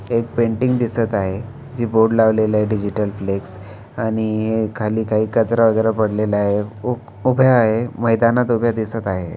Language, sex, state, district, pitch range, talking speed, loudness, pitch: Marathi, male, Maharashtra, Aurangabad, 105-115 Hz, 155 wpm, -18 LUFS, 110 Hz